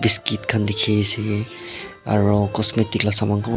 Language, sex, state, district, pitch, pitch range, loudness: Nagamese, male, Nagaland, Dimapur, 105 Hz, 105-110 Hz, -20 LUFS